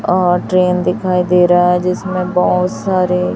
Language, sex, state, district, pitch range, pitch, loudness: Hindi, male, Chhattisgarh, Raipur, 180-185 Hz, 180 Hz, -14 LUFS